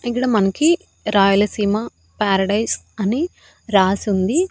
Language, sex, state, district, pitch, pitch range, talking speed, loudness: Telugu, female, Andhra Pradesh, Annamaya, 205 Hz, 195-240 Hz, 95 wpm, -18 LUFS